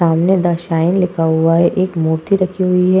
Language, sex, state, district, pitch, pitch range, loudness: Hindi, female, Uttar Pradesh, Hamirpur, 175 Hz, 165-185 Hz, -15 LUFS